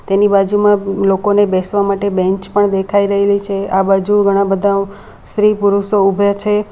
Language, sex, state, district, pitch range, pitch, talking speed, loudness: Gujarati, female, Gujarat, Valsad, 195-205 Hz, 200 Hz, 160 wpm, -14 LUFS